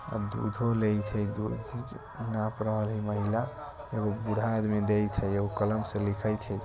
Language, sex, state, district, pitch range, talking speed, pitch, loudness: Hindi, male, Bihar, Vaishali, 105-110 Hz, 110 wpm, 110 Hz, -31 LUFS